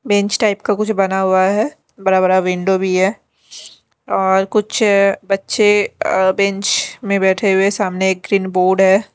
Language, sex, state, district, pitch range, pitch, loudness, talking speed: Hindi, female, Delhi, New Delhi, 190-205 Hz, 195 Hz, -15 LUFS, 150 wpm